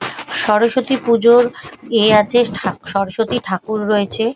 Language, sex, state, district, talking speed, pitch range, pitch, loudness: Bengali, female, West Bengal, Paschim Medinipur, 125 wpm, 205-240 Hz, 220 Hz, -16 LUFS